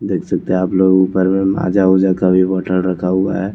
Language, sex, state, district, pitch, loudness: Hindi, male, Chandigarh, Chandigarh, 95 Hz, -15 LUFS